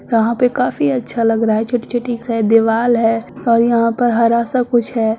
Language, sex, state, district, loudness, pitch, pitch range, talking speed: Hindi, female, Uttar Pradesh, Budaun, -15 LUFS, 230 Hz, 225-245 Hz, 210 wpm